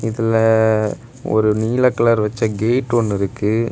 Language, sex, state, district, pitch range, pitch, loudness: Tamil, male, Tamil Nadu, Kanyakumari, 110-120 Hz, 115 Hz, -17 LUFS